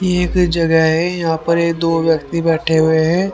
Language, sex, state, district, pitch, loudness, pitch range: Hindi, male, Haryana, Rohtak, 165 Hz, -15 LUFS, 160-175 Hz